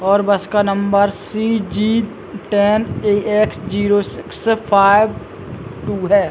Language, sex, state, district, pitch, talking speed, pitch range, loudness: Hindi, male, Chhattisgarh, Bilaspur, 205 Hz, 135 wpm, 200-215 Hz, -16 LUFS